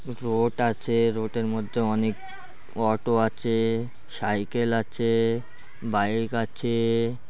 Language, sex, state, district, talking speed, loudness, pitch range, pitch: Bengali, male, West Bengal, Malda, 100 wpm, -26 LUFS, 110-120 Hz, 115 Hz